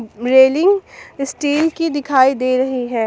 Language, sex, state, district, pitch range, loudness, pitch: Hindi, female, Jharkhand, Palamu, 255-295 Hz, -15 LUFS, 265 Hz